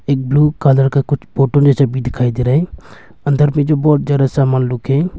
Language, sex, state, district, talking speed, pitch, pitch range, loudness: Hindi, male, Arunachal Pradesh, Longding, 240 wpm, 140 Hz, 130-145 Hz, -14 LUFS